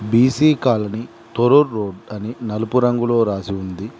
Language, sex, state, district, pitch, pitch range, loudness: Telugu, male, Telangana, Mahabubabad, 115 Hz, 105-120 Hz, -18 LUFS